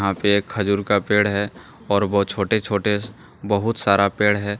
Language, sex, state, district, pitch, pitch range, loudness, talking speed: Hindi, male, Jharkhand, Deoghar, 100 Hz, 100-105 Hz, -20 LUFS, 155 wpm